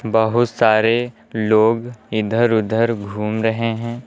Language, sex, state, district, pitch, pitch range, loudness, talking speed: Hindi, male, Uttar Pradesh, Lucknow, 115 Hz, 110-115 Hz, -18 LUFS, 120 wpm